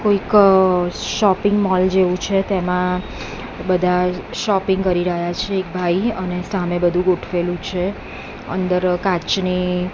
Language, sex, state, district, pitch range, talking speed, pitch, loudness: Gujarati, female, Gujarat, Gandhinagar, 180-195 Hz, 120 wpm, 185 Hz, -18 LUFS